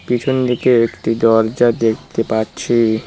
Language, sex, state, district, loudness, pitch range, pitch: Bengali, male, West Bengal, Cooch Behar, -16 LUFS, 110-120 Hz, 115 Hz